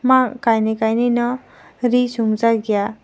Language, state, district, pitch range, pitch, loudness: Kokborok, Tripura, Dhalai, 220-245 Hz, 230 Hz, -18 LUFS